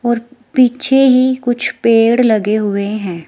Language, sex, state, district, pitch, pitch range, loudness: Hindi, female, Himachal Pradesh, Shimla, 235 Hz, 215-255 Hz, -13 LUFS